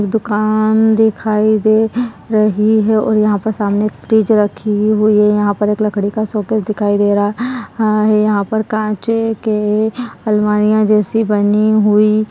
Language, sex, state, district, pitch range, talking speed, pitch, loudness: Hindi, female, Uttarakhand, Tehri Garhwal, 210-220 Hz, 160 wpm, 215 Hz, -14 LUFS